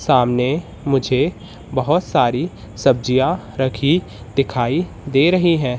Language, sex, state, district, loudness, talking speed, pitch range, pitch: Hindi, male, Madhya Pradesh, Katni, -18 LUFS, 105 wpm, 125-150 Hz, 135 Hz